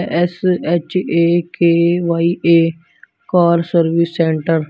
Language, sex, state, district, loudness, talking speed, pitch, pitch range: Hindi, male, Uttar Pradesh, Shamli, -15 LUFS, 125 wpm, 170 Hz, 165-175 Hz